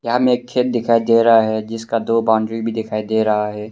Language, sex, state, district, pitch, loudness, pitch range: Hindi, male, Arunachal Pradesh, Longding, 115 Hz, -17 LUFS, 110-115 Hz